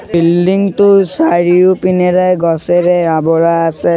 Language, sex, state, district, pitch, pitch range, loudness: Assamese, male, Assam, Sonitpur, 175 Hz, 170-185 Hz, -11 LUFS